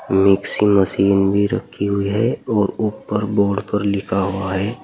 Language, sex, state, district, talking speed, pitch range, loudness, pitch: Hindi, male, Uttar Pradesh, Saharanpur, 160 wpm, 95-105 Hz, -18 LUFS, 100 Hz